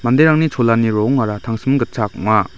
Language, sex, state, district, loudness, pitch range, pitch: Garo, male, Meghalaya, West Garo Hills, -16 LUFS, 110-135 Hz, 120 Hz